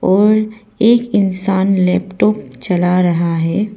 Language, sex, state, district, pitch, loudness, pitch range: Hindi, female, Arunachal Pradesh, Papum Pare, 195 Hz, -14 LUFS, 180-215 Hz